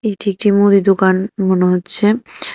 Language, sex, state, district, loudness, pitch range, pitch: Bengali, female, Tripura, West Tripura, -14 LUFS, 190-205 Hz, 195 Hz